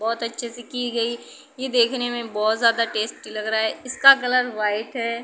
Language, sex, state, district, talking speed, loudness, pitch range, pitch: Hindi, female, Uttar Pradesh, Budaun, 205 wpm, -22 LUFS, 220-250 Hz, 235 Hz